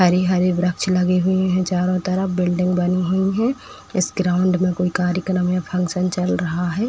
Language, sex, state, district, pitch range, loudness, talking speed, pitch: Hindi, female, Uttar Pradesh, Etah, 180-185 Hz, -20 LUFS, 190 wpm, 180 Hz